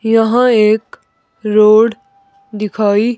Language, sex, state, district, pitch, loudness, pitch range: Hindi, female, Himachal Pradesh, Shimla, 225 Hz, -12 LUFS, 215-245 Hz